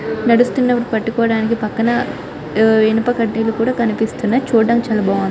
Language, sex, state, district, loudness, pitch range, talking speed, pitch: Telugu, female, Telangana, Karimnagar, -16 LUFS, 220-235 Hz, 145 wpm, 225 Hz